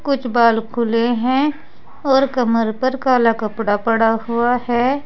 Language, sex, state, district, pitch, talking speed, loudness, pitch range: Hindi, female, Uttar Pradesh, Saharanpur, 240 Hz, 140 wpm, -17 LUFS, 230-260 Hz